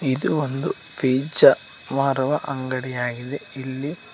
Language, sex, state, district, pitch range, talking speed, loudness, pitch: Kannada, male, Karnataka, Koppal, 130-140 Hz, 85 wpm, -22 LUFS, 135 Hz